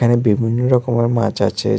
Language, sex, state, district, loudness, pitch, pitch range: Bengali, male, Tripura, West Tripura, -17 LUFS, 115 Hz, 110-120 Hz